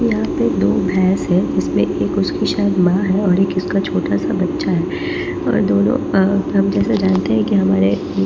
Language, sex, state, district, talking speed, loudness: Hindi, female, Bihar, Patna, 195 wpm, -16 LUFS